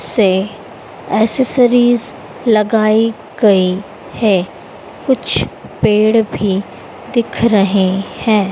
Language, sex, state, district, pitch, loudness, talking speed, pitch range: Hindi, female, Madhya Pradesh, Dhar, 215 Hz, -14 LUFS, 80 wpm, 195-230 Hz